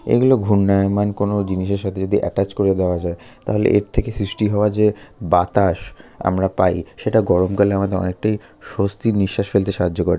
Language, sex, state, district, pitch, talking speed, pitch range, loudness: Bengali, male, West Bengal, North 24 Parganas, 100 Hz, 165 wpm, 95-105 Hz, -19 LUFS